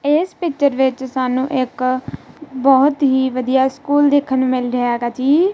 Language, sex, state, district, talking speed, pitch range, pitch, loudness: Punjabi, female, Punjab, Kapurthala, 160 wpm, 255-285 Hz, 265 Hz, -17 LUFS